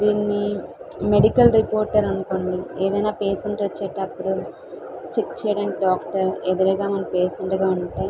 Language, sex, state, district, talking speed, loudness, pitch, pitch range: Telugu, female, Andhra Pradesh, Visakhapatnam, 120 wpm, -22 LUFS, 195 Hz, 190-205 Hz